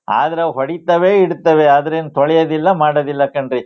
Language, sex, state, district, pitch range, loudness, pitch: Kannada, male, Karnataka, Shimoga, 140-170 Hz, -14 LUFS, 155 Hz